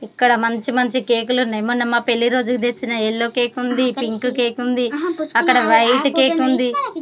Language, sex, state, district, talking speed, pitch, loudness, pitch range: Telugu, female, Telangana, Karimnagar, 180 wpm, 245 Hz, -17 LUFS, 235-255 Hz